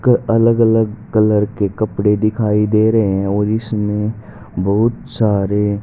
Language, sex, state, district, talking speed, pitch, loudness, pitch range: Hindi, male, Haryana, Rohtak, 145 wpm, 105 Hz, -16 LUFS, 105-115 Hz